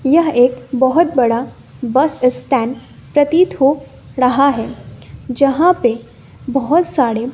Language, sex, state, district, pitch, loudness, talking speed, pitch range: Hindi, female, Bihar, West Champaran, 265 Hz, -15 LUFS, 125 wpm, 250-290 Hz